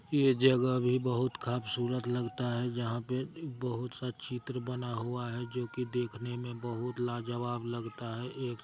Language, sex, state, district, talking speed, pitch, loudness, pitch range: Hindi, male, Bihar, Araria, 165 wpm, 125 Hz, -34 LUFS, 120-125 Hz